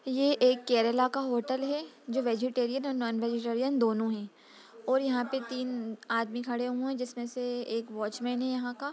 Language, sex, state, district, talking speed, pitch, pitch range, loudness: Hindi, female, Bihar, Darbhanga, 190 wpm, 245 Hz, 235-260 Hz, -31 LUFS